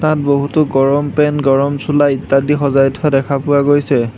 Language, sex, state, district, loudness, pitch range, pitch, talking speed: Assamese, male, Assam, Hailakandi, -13 LUFS, 135-145 Hz, 140 Hz, 170 wpm